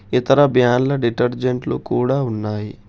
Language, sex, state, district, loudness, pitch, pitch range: Telugu, male, Telangana, Hyderabad, -18 LUFS, 125 Hz, 110-130 Hz